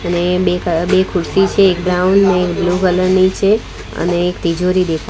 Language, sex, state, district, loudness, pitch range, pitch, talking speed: Gujarati, female, Gujarat, Gandhinagar, -14 LUFS, 175-190 Hz, 180 Hz, 210 wpm